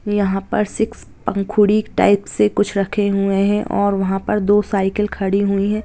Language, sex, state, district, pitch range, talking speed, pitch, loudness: Hindi, female, Bihar, Gopalganj, 195-210 Hz, 185 wpm, 200 Hz, -18 LUFS